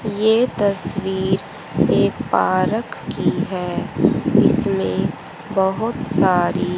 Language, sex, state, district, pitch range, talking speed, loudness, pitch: Hindi, female, Haryana, Rohtak, 185-210 Hz, 80 wpm, -19 LUFS, 190 Hz